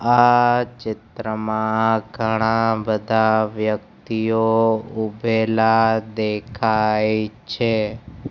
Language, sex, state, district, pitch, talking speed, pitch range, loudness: Gujarati, male, Gujarat, Gandhinagar, 110 Hz, 60 wpm, 110-115 Hz, -20 LUFS